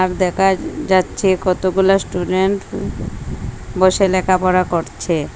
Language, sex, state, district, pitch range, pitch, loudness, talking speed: Bengali, female, Assam, Hailakandi, 180-190 Hz, 185 Hz, -17 LUFS, 80 wpm